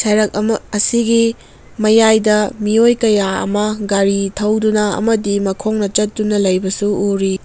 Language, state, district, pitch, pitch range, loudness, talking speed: Manipuri, Manipur, Imphal West, 210 Hz, 200-220 Hz, -15 LUFS, 115 wpm